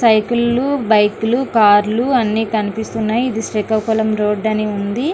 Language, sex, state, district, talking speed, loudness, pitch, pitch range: Telugu, female, Andhra Pradesh, Srikakulam, 130 wpm, -16 LUFS, 220 Hz, 215-235 Hz